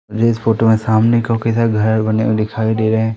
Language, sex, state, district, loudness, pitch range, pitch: Hindi, male, Madhya Pradesh, Umaria, -15 LUFS, 110-115 Hz, 110 Hz